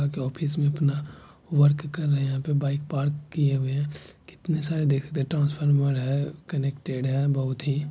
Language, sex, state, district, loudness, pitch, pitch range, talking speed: Hindi, male, Bihar, Gopalganj, -26 LUFS, 145 Hz, 140-150 Hz, 165 wpm